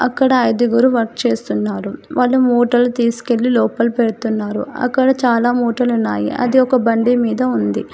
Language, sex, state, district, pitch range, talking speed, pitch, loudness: Telugu, female, Telangana, Hyderabad, 230-255 Hz, 135 wpm, 240 Hz, -16 LUFS